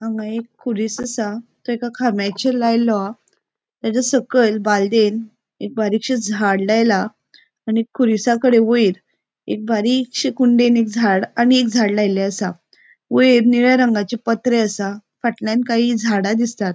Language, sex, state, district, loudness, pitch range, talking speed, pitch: Konkani, female, Goa, North and South Goa, -17 LUFS, 215-240 Hz, 130 wpm, 230 Hz